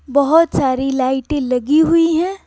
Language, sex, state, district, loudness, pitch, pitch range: Hindi, female, Bihar, Patna, -15 LUFS, 285 Hz, 265-325 Hz